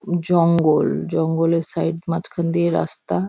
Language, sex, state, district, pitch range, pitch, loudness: Bengali, female, West Bengal, Jhargram, 165-170 Hz, 165 Hz, -20 LUFS